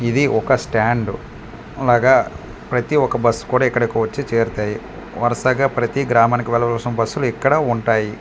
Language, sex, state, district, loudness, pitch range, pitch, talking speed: Telugu, male, Andhra Pradesh, Manyam, -18 LUFS, 115-130 Hz, 120 Hz, 130 wpm